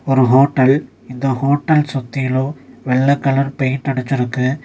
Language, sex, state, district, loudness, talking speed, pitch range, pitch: Tamil, male, Tamil Nadu, Nilgiris, -16 LUFS, 115 wpm, 130-140 Hz, 135 Hz